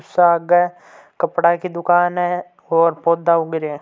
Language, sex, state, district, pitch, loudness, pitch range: Hindi, male, Rajasthan, Churu, 170 Hz, -17 LUFS, 165-175 Hz